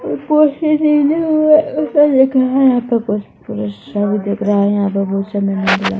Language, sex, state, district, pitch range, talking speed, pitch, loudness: Hindi, male, Chhattisgarh, Korba, 200-300 Hz, 130 wpm, 235 Hz, -14 LUFS